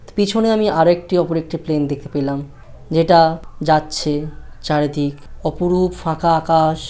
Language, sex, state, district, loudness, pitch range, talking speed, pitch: Bengali, female, West Bengal, North 24 Parganas, -18 LUFS, 150-175 Hz, 120 wpm, 160 Hz